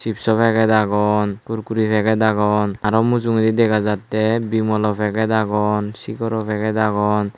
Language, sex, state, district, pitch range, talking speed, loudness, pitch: Chakma, male, Tripura, Unakoti, 105-110 Hz, 145 wpm, -18 LUFS, 110 Hz